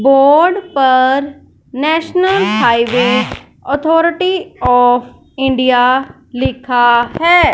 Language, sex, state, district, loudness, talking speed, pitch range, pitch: Hindi, male, Punjab, Fazilka, -12 LUFS, 70 wpm, 245-325 Hz, 265 Hz